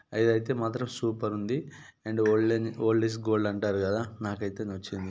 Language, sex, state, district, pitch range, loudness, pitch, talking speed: Telugu, male, Telangana, Nalgonda, 105-115 Hz, -29 LUFS, 110 Hz, 175 wpm